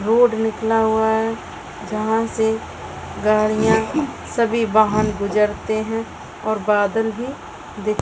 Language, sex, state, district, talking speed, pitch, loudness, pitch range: Hindi, female, Uttar Pradesh, Jyotiba Phule Nagar, 120 wpm, 220 Hz, -20 LUFS, 215-225 Hz